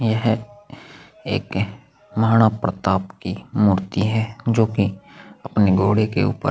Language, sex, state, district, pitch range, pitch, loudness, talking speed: Hindi, male, Chhattisgarh, Sukma, 95-115 Hz, 105 Hz, -20 LUFS, 130 wpm